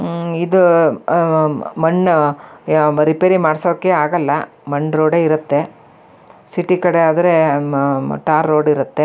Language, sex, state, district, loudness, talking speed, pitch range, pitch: Kannada, female, Karnataka, Shimoga, -15 LUFS, 100 wpm, 150-170 Hz, 155 Hz